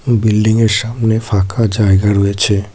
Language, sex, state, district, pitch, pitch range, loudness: Bengali, male, West Bengal, Cooch Behar, 110 Hz, 100-115 Hz, -13 LUFS